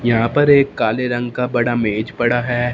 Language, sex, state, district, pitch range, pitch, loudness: Hindi, male, Punjab, Fazilka, 120-125 Hz, 120 Hz, -17 LUFS